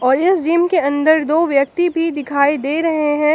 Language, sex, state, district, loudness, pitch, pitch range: Hindi, female, Jharkhand, Palamu, -16 LUFS, 310 Hz, 285-330 Hz